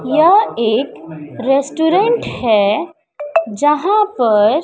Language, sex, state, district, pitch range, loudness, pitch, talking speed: Hindi, female, Bihar, West Champaran, 220-330 Hz, -14 LUFS, 290 Hz, 75 wpm